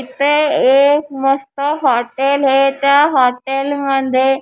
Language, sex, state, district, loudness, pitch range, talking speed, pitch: Marathi, female, Maharashtra, Chandrapur, -14 LUFS, 270-285 Hz, 120 wpm, 275 Hz